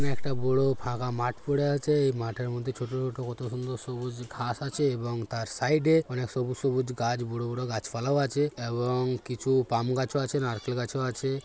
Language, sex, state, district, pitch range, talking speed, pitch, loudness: Bengali, male, West Bengal, Jhargram, 120-135 Hz, 185 wpm, 125 Hz, -29 LUFS